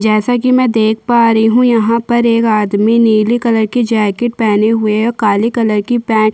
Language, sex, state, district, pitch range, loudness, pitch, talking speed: Hindi, female, Chhattisgarh, Sukma, 215-235 Hz, -12 LUFS, 225 Hz, 220 wpm